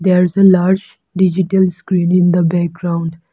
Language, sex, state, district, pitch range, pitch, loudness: English, female, Arunachal Pradesh, Lower Dibang Valley, 175-190 Hz, 180 Hz, -14 LUFS